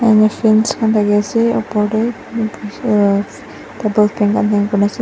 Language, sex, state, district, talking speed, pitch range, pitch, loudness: Nagamese, female, Nagaland, Dimapur, 180 wpm, 210-225 Hz, 215 Hz, -15 LUFS